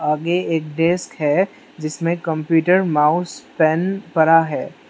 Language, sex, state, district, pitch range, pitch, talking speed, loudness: Hindi, male, Manipur, Imphal West, 155-175 Hz, 165 Hz, 125 wpm, -18 LUFS